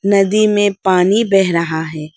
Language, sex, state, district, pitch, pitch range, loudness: Hindi, female, Arunachal Pradesh, Lower Dibang Valley, 195 Hz, 170-205 Hz, -14 LUFS